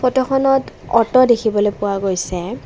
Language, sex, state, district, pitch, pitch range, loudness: Assamese, female, Assam, Kamrup Metropolitan, 230 Hz, 200-255 Hz, -16 LUFS